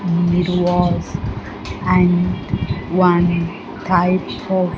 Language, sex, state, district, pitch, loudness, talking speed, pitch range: English, female, Andhra Pradesh, Sri Satya Sai, 175 Hz, -18 LUFS, 100 wpm, 175-180 Hz